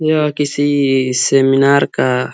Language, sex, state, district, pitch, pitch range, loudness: Hindi, male, Uttar Pradesh, Ghazipur, 140 Hz, 135-145 Hz, -14 LUFS